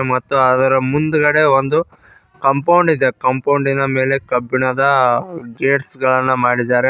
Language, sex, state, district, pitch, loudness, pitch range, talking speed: Kannada, male, Karnataka, Koppal, 135 Hz, -15 LUFS, 130-140 Hz, 115 wpm